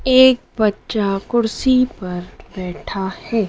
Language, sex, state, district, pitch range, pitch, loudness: Hindi, female, Madhya Pradesh, Dhar, 190-250 Hz, 215 Hz, -18 LUFS